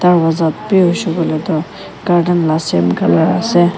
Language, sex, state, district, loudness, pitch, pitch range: Nagamese, female, Nagaland, Kohima, -14 LUFS, 170 Hz, 160-180 Hz